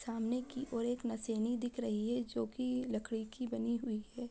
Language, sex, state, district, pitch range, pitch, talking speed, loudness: Hindi, female, Bihar, Samastipur, 225-245 Hz, 235 Hz, 195 wpm, -38 LUFS